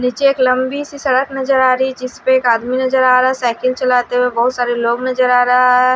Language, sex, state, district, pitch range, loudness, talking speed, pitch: Hindi, female, Odisha, Malkangiri, 250-260 Hz, -14 LUFS, 270 wpm, 255 Hz